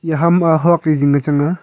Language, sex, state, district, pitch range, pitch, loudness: Wancho, male, Arunachal Pradesh, Longding, 145-170 Hz, 160 Hz, -14 LUFS